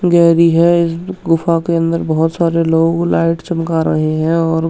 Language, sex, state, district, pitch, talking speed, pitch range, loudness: Hindi, male, Uttarakhand, Tehri Garhwal, 165 Hz, 190 wpm, 165-170 Hz, -14 LUFS